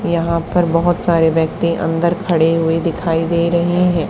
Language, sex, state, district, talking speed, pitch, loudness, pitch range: Hindi, female, Haryana, Charkhi Dadri, 175 wpm, 170 Hz, -16 LUFS, 165-170 Hz